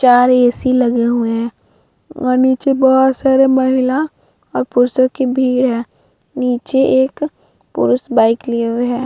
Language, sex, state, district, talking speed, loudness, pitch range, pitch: Hindi, female, Bihar, Vaishali, 145 wpm, -14 LUFS, 245-265 Hz, 255 Hz